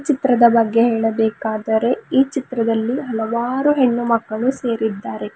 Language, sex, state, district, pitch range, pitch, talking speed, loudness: Kannada, female, Karnataka, Bidar, 220-255 Hz, 235 Hz, 100 wpm, -18 LUFS